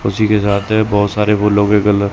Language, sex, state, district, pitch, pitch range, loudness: Hindi, male, Chandigarh, Chandigarh, 105 Hz, 100-105 Hz, -14 LUFS